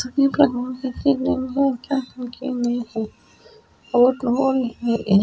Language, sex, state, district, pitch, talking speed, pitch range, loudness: Hindi, female, Rajasthan, Nagaur, 250 Hz, 90 wpm, 240-270 Hz, -21 LUFS